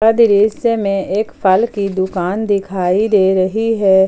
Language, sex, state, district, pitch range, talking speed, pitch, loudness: Hindi, female, Jharkhand, Palamu, 190-220 Hz, 145 wpm, 200 Hz, -15 LUFS